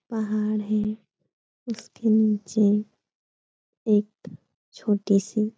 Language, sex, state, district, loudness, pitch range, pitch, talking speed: Hindi, female, Bihar, Supaul, -25 LUFS, 210-220 Hz, 215 Hz, 85 wpm